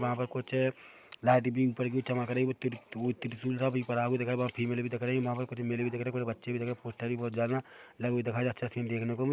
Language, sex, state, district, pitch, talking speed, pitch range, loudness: Hindi, male, Chhattisgarh, Rajnandgaon, 125 Hz, 290 wpm, 120-125 Hz, -33 LUFS